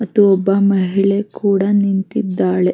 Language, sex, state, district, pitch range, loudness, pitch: Kannada, female, Karnataka, Mysore, 190-200 Hz, -15 LUFS, 195 Hz